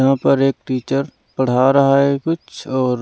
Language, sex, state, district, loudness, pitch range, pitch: Hindi, male, Punjab, Pathankot, -17 LUFS, 130-140 Hz, 135 Hz